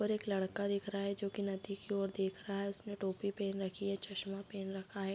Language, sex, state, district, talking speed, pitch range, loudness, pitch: Hindi, female, Bihar, Bhagalpur, 280 wpm, 195-200 Hz, -39 LUFS, 200 Hz